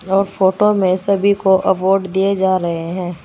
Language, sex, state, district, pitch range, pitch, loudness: Hindi, female, Uttar Pradesh, Saharanpur, 185-195 Hz, 190 Hz, -16 LUFS